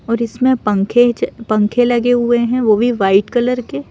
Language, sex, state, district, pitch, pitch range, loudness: Hindi, female, Madhya Pradesh, Bhopal, 235 Hz, 210-245 Hz, -15 LUFS